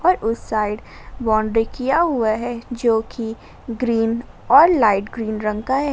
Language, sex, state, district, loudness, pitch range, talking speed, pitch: Hindi, female, Jharkhand, Ranchi, -19 LUFS, 220-250 Hz, 160 wpm, 230 Hz